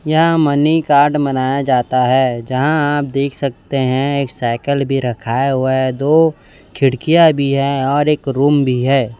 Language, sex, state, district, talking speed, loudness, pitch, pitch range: Hindi, male, Chhattisgarh, Raipur, 170 wpm, -15 LUFS, 140 Hz, 130-145 Hz